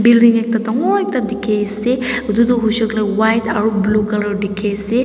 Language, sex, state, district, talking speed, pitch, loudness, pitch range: Nagamese, female, Nagaland, Dimapur, 180 wpm, 220 Hz, -16 LUFS, 210-230 Hz